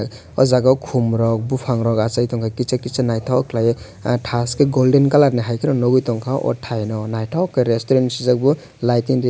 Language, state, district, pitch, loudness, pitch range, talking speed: Kokborok, Tripura, West Tripura, 125 Hz, -18 LUFS, 115-130 Hz, 215 wpm